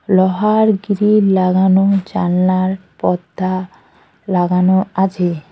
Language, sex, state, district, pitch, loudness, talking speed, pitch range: Bengali, female, West Bengal, Cooch Behar, 190 Hz, -15 LUFS, 75 wpm, 185-195 Hz